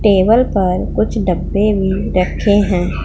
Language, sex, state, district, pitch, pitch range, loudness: Hindi, female, Punjab, Pathankot, 200 Hz, 185-210 Hz, -15 LUFS